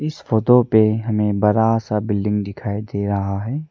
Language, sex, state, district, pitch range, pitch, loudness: Hindi, male, Arunachal Pradesh, Lower Dibang Valley, 100-115 Hz, 105 Hz, -19 LUFS